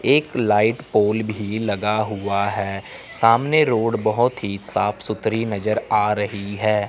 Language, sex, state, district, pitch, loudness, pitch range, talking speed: Hindi, male, Chandigarh, Chandigarh, 105 Hz, -20 LUFS, 100-115 Hz, 150 wpm